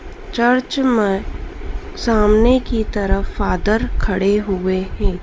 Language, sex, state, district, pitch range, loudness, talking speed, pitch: Hindi, female, Madhya Pradesh, Dhar, 195-240 Hz, -18 LUFS, 105 wpm, 210 Hz